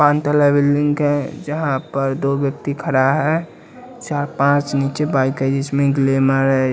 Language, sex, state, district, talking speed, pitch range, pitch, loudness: Hindi, male, Bihar, West Champaran, 145 wpm, 135-150 Hz, 140 Hz, -18 LUFS